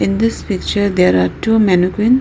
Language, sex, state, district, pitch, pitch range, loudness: English, female, Arunachal Pradesh, Lower Dibang Valley, 200 Hz, 180-225 Hz, -14 LUFS